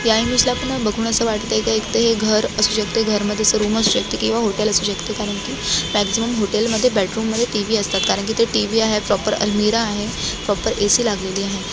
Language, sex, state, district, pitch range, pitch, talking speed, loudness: Marathi, female, Maharashtra, Dhule, 210-225 Hz, 215 Hz, 240 wpm, -18 LUFS